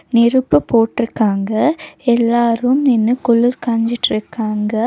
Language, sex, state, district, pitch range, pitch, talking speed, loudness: Tamil, female, Tamil Nadu, Nilgiris, 220-240 Hz, 235 Hz, 75 wpm, -15 LUFS